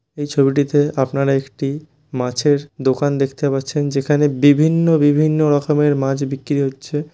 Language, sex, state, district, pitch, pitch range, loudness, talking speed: Bengali, male, West Bengal, Malda, 145 Hz, 135-150 Hz, -17 LUFS, 125 wpm